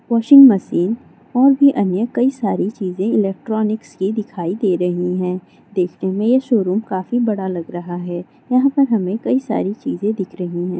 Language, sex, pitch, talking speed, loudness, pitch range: Maithili, female, 205 Hz, 180 wpm, -17 LUFS, 185-235 Hz